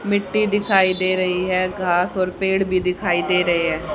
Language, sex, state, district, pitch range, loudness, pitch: Hindi, female, Haryana, Jhajjar, 180-190 Hz, -19 LUFS, 185 Hz